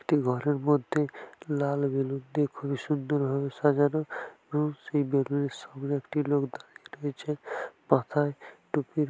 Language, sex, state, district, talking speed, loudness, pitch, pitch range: Bengali, male, West Bengal, Dakshin Dinajpur, 140 wpm, -29 LUFS, 145 Hz, 140-150 Hz